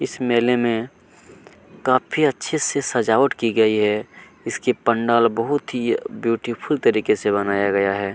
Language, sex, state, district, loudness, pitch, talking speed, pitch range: Hindi, male, Chhattisgarh, Kabirdham, -20 LUFS, 115 Hz, 145 wpm, 110-125 Hz